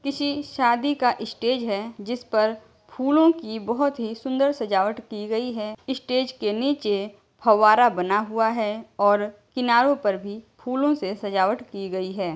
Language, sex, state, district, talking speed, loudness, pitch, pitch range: Hindi, female, Uttar Pradesh, Jyotiba Phule Nagar, 160 wpm, -23 LUFS, 225 Hz, 210-255 Hz